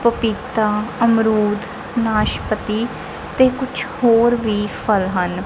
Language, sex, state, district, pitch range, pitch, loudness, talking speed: Punjabi, female, Punjab, Kapurthala, 210-235 Hz, 220 Hz, -18 LUFS, 100 wpm